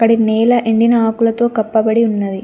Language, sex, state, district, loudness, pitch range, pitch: Telugu, female, Telangana, Mahabubabad, -14 LUFS, 220-230 Hz, 225 Hz